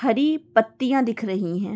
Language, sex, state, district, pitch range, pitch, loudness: Hindi, female, Chhattisgarh, Raigarh, 200-265 Hz, 230 Hz, -22 LUFS